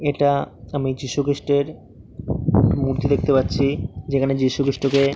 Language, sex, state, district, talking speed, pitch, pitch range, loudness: Bengali, male, West Bengal, Paschim Medinipur, 115 wpm, 140 Hz, 135-140 Hz, -21 LUFS